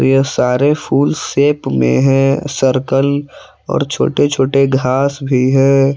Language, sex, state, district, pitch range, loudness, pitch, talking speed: Hindi, male, Jharkhand, Palamu, 130-140 Hz, -14 LUFS, 135 Hz, 130 wpm